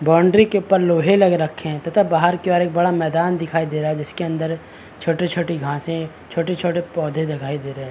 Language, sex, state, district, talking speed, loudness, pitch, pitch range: Hindi, male, Bihar, Saharsa, 210 wpm, -19 LUFS, 165 Hz, 155-175 Hz